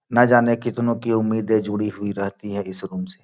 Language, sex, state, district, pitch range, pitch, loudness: Hindi, male, Bihar, Gopalganj, 105-120 Hz, 110 Hz, -21 LUFS